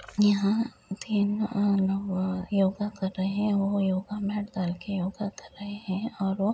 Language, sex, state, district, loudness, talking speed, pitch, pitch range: Hindi, female, Uttar Pradesh, Deoria, -28 LUFS, 165 wpm, 200 Hz, 190-205 Hz